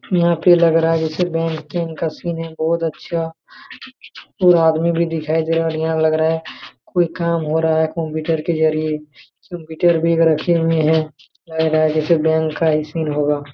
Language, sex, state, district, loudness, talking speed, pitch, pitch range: Hindi, male, Jharkhand, Jamtara, -18 LUFS, 205 wpm, 160 Hz, 155-170 Hz